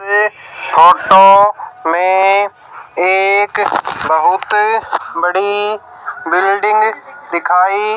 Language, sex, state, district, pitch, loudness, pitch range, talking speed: Hindi, female, Haryana, Jhajjar, 200 Hz, -12 LUFS, 190-210 Hz, 55 wpm